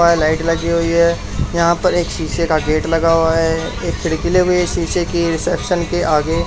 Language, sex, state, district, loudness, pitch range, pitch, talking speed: Hindi, male, Haryana, Charkhi Dadri, -16 LUFS, 165-175 Hz, 170 Hz, 225 wpm